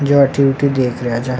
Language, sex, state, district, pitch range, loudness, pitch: Rajasthani, male, Rajasthan, Nagaur, 125-140 Hz, -15 LUFS, 135 Hz